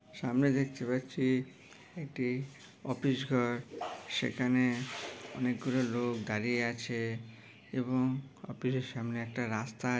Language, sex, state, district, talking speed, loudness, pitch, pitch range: Bengali, male, West Bengal, Purulia, 110 wpm, -34 LUFS, 125 Hz, 120-130 Hz